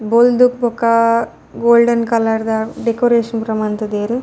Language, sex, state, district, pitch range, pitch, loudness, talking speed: Tulu, female, Karnataka, Dakshina Kannada, 220-235 Hz, 230 Hz, -15 LUFS, 100 wpm